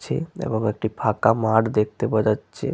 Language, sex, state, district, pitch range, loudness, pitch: Bengali, male, West Bengal, Malda, 110-115 Hz, -22 LUFS, 110 Hz